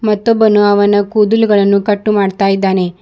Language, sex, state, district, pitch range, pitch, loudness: Kannada, female, Karnataka, Bidar, 200-215 Hz, 205 Hz, -11 LUFS